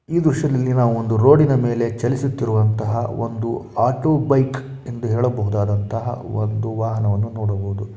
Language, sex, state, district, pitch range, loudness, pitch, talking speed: Kannada, male, Karnataka, Shimoga, 110-130 Hz, -20 LUFS, 115 Hz, 120 wpm